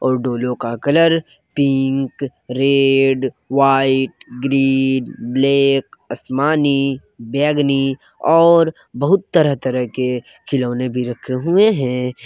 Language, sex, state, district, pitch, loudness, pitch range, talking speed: Hindi, male, Jharkhand, Garhwa, 135 Hz, -17 LUFS, 125-140 Hz, 105 wpm